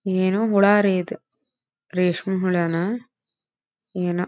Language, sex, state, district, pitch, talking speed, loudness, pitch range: Kannada, female, Karnataka, Dharwad, 190 Hz, 110 wpm, -21 LUFS, 180-205 Hz